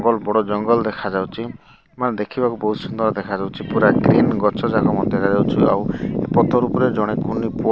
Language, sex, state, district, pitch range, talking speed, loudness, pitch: Odia, male, Odisha, Malkangiri, 105-115 Hz, 170 wpm, -19 LUFS, 110 Hz